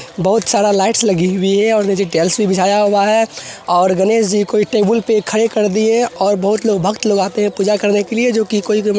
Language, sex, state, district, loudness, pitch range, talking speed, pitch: Hindi, male, Bihar, Araria, -14 LUFS, 200-220 Hz, 240 wpm, 210 Hz